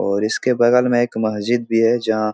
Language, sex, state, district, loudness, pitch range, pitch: Hindi, male, Bihar, Supaul, -17 LUFS, 110-120 Hz, 115 Hz